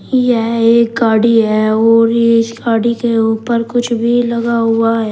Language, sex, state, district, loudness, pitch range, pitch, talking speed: Hindi, male, Uttar Pradesh, Shamli, -12 LUFS, 225-235 Hz, 230 Hz, 165 wpm